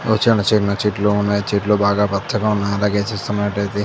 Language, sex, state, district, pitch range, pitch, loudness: Telugu, male, Andhra Pradesh, Chittoor, 100-105 Hz, 105 Hz, -18 LUFS